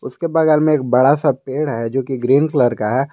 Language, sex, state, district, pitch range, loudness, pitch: Hindi, male, Jharkhand, Garhwa, 130-150 Hz, -16 LUFS, 135 Hz